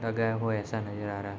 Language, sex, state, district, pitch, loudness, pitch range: Hindi, male, Bihar, Gopalganj, 110 Hz, -31 LUFS, 105-115 Hz